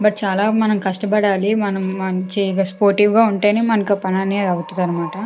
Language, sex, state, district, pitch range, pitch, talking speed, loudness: Telugu, female, Andhra Pradesh, Krishna, 190-210 Hz, 200 Hz, 135 wpm, -17 LUFS